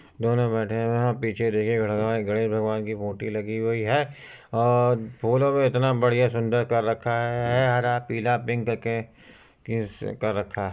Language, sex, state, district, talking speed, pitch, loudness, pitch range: Hindi, male, Uttar Pradesh, Muzaffarnagar, 170 wpm, 115 Hz, -25 LUFS, 110-120 Hz